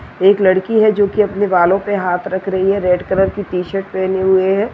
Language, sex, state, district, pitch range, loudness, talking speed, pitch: Hindi, female, Chhattisgarh, Balrampur, 185-200 Hz, -15 LUFS, 240 wpm, 190 Hz